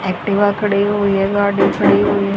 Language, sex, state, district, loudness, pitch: Hindi, female, Haryana, Charkhi Dadri, -15 LUFS, 200 Hz